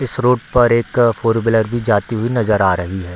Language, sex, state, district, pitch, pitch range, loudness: Hindi, male, Bihar, Darbhanga, 115 Hz, 105-120 Hz, -16 LUFS